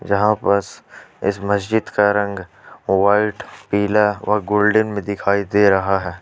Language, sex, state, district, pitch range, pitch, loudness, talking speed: Hindi, male, Jharkhand, Ranchi, 100-105 Hz, 100 Hz, -18 LUFS, 145 wpm